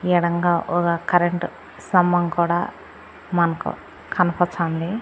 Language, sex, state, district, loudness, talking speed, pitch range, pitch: Telugu, female, Andhra Pradesh, Annamaya, -21 LUFS, 85 wpm, 170-175 Hz, 175 Hz